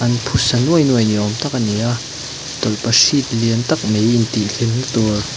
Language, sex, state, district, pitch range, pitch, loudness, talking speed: Mizo, male, Mizoram, Aizawl, 110-135 Hz, 120 Hz, -16 LUFS, 190 wpm